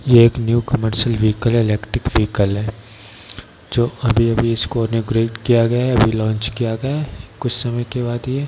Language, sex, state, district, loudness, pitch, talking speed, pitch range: Hindi, male, Bihar, Darbhanga, -18 LUFS, 115 Hz, 200 wpm, 110-120 Hz